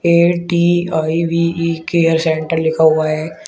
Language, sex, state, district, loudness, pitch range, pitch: Hindi, male, Uttar Pradesh, Shamli, -15 LUFS, 160-170 Hz, 165 Hz